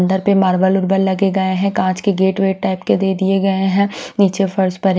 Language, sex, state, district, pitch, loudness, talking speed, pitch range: Hindi, female, Haryana, Charkhi Dadri, 190 Hz, -16 LUFS, 250 wpm, 190-195 Hz